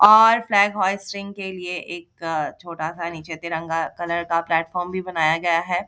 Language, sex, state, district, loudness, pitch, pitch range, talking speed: Hindi, female, Bihar, Jahanabad, -22 LUFS, 175 Hz, 165-190 Hz, 175 wpm